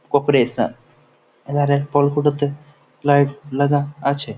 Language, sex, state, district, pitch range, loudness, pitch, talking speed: Bengali, male, West Bengal, Jhargram, 135-145 Hz, -19 LUFS, 140 Hz, 95 wpm